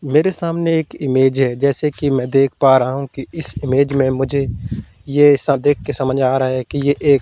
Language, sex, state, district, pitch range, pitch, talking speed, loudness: Hindi, male, Madhya Pradesh, Katni, 130-145 Hz, 135 Hz, 235 wpm, -16 LUFS